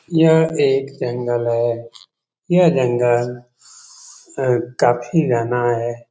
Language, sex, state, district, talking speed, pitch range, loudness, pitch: Hindi, male, Bihar, Jamui, 90 wpm, 120-145 Hz, -18 LUFS, 125 Hz